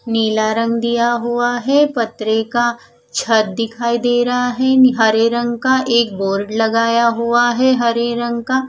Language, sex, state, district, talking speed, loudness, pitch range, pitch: Hindi, female, Punjab, Fazilka, 160 wpm, -16 LUFS, 225-245 Hz, 235 Hz